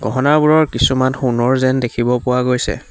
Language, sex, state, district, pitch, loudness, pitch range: Assamese, male, Assam, Hailakandi, 125 Hz, -15 LUFS, 125-130 Hz